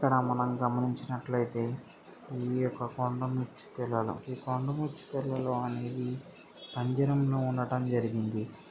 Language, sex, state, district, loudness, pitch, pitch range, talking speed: Telugu, male, Andhra Pradesh, Srikakulam, -33 LUFS, 125 Hz, 125-130 Hz, 95 wpm